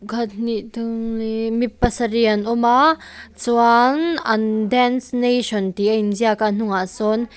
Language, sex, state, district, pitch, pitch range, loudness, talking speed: Mizo, female, Mizoram, Aizawl, 230 Hz, 215-240 Hz, -19 LUFS, 170 wpm